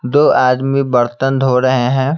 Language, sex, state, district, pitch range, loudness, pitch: Hindi, male, Bihar, Patna, 125-135 Hz, -13 LUFS, 130 Hz